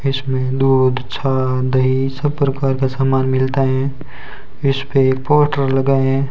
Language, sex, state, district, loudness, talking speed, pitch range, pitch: Hindi, male, Rajasthan, Bikaner, -17 LUFS, 145 wpm, 130-135 Hz, 135 Hz